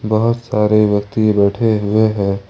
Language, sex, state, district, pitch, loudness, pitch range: Hindi, male, Jharkhand, Ranchi, 105 Hz, -15 LUFS, 100-110 Hz